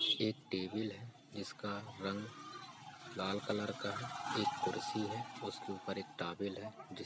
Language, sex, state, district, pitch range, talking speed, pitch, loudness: Hindi, male, Uttar Pradesh, Varanasi, 100-110 Hz, 135 wpm, 105 Hz, -41 LUFS